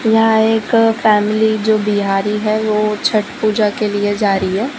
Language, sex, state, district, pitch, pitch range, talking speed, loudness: Hindi, female, Gujarat, Valsad, 215 Hz, 210-220 Hz, 175 wpm, -15 LUFS